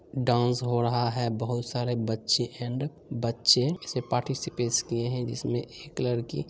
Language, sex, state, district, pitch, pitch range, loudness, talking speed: Angika, male, Bihar, Begusarai, 120 Hz, 120-125 Hz, -28 LUFS, 140 wpm